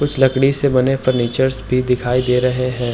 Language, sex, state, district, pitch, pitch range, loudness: Hindi, male, Uttar Pradesh, Hamirpur, 125 Hz, 125-135 Hz, -16 LUFS